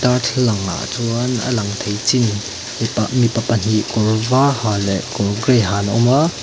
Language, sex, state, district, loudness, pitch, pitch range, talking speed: Mizo, male, Mizoram, Aizawl, -17 LUFS, 115 Hz, 105-125 Hz, 175 wpm